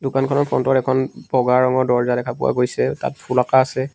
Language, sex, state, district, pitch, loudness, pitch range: Assamese, male, Assam, Sonitpur, 130 Hz, -19 LUFS, 125-130 Hz